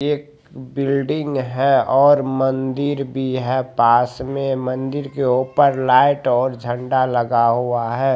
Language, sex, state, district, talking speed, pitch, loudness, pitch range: Hindi, male, Bihar, Saran, 125 wpm, 130 Hz, -18 LUFS, 125-140 Hz